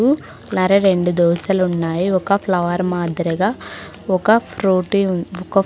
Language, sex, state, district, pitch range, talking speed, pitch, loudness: Telugu, female, Andhra Pradesh, Sri Satya Sai, 175-195 Hz, 125 wpm, 185 Hz, -18 LUFS